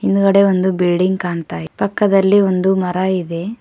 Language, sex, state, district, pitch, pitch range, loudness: Kannada, female, Karnataka, Koppal, 185 Hz, 180-195 Hz, -15 LUFS